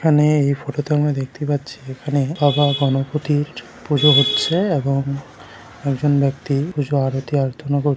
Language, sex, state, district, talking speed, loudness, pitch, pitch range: Bengali, male, West Bengal, Jalpaiguri, 145 wpm, -19 LUFS, 140 Hz, 135-145 Hz